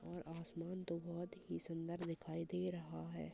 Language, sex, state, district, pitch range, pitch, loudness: Hindi, female, Chhattisgarh, Balrampur, 165-175 Hz, 170 Hz, -46 LUFS